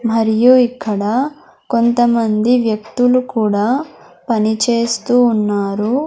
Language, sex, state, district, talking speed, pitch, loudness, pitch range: Telugu, female, Andhra Pradesh, Sri Satya Sai, 70 wpm, 230 Hz, -15 LUFS, 215-245 Hz